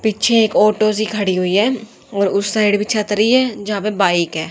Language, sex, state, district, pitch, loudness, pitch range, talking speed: Hindi, female, Haryana, Jhajjar, 210 Hz, -16 LUFS, 200-215 Hz, 225 wpm